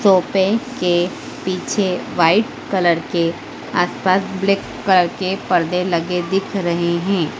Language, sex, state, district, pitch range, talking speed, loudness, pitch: Hindi, female, Madhya Pradesh, Dhar, 175-195 Hz, 130 wpm, -18 LUFS, 185 Hz